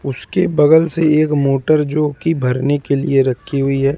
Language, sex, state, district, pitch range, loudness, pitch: Hindi, male, Madhya Pradesh, Katni, 135-155 Hz, -15 LUFS, 145 Hz